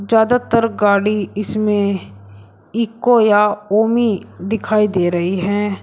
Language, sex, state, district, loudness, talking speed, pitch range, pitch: Hindi, male, Uttar Pradesh, Shamli, -16 LUFS, 105 wpm, 195-220 Hz, 210 Hz